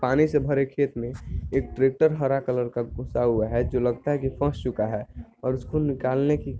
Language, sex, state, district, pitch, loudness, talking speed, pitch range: Hindi, male, Bihar, Sitamarhi, 130 Hz, -25 LUFS, 225 wpm, 120-140 Hz